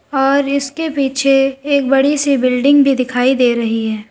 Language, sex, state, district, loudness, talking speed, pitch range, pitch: Hindi, female, Uttar Pradesh, Lalitpur, -14 LUFS, 175 wpm, 250-280 Hz, 270 Hz